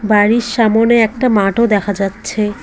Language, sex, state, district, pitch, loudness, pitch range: Bengali, female, West Bengal, Cooch Behar, 220 Hz, -13 LUFS, 205-230 Hz